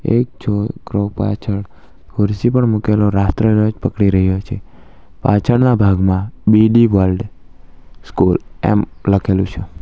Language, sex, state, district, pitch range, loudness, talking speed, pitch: Gujarati, male, Gujarat, Valsad, 95-110 Hz, -15 LUFS, 110 wpm, 105 Hz